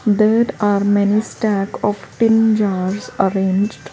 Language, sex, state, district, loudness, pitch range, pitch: English, female, Gujarat, Valsad, -17 LUFS, 195-215 Hz, 205 Hz